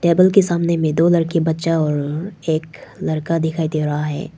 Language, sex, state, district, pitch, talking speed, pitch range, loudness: Hindi, female, Arunachal Pradesh, Papum Pare, 160 Hz, 190 wpm, 155-170 Hz, -18 LUFS